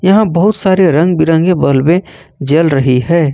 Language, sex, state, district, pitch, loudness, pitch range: Hindi, male, Jharkhand, Ranchi, 165 Hz, -11 LUFS, 145-185 Hz